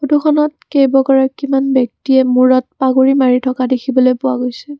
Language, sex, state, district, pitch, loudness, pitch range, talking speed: Assamese, female, Assam, Kamrup Metropolitan, 265 Hz, -13 LUFS, 255-275 Hz, 125 wpm